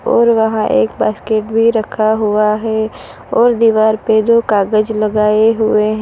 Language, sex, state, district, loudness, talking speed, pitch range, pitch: Hindi, female, Gujarat, Valsad, -13 LUFS, 160 wpm, 215-225 Hz, 220 Hz